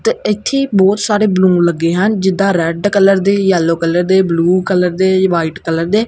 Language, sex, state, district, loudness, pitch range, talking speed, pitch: Punjabi, female, Punjab, Kapurthala, -13 LUFS, 170-200 Hz, 195 wpm, 190 Hz